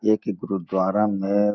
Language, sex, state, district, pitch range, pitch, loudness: Hindi, male, Bihar, Gopalganj, 95-105 Hz, 100 Hz, -23 LUFS